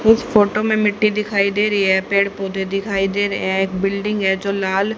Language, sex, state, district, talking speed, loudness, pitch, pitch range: Hindi, female, Haryana, Charkhi Dadri, 240 wpm, -18 LUFS, 200 Hz, 195-210 Hz